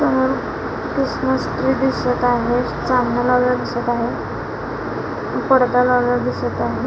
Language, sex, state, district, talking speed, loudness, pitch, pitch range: Marathi, female, Maharashtra, Solapur, 115 wpm, -19 LUFS, 245 Hz, 240-250 Hz